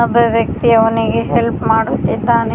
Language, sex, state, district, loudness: Kannada, female, Karnataka, Koppal, -14 LUFS